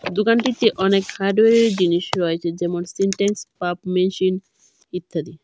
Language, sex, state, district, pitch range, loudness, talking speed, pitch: Bengali, female, Tripura, Dhalai, 175-205 Hz, -20 LUFS, 120 wpm, 185 Hz